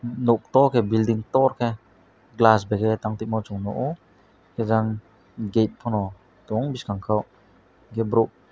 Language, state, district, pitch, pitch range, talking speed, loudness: Kokborok, Tripura, West Tripura, 110 Hz, 105-120 Hz, 140 wpm, -23 LUFS